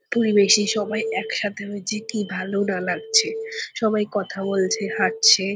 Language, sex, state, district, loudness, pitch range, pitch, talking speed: Bengali, female, West Bengal, Purulia, -21 LUFS, 200-220 Hz, 210 Hz, 130 wpm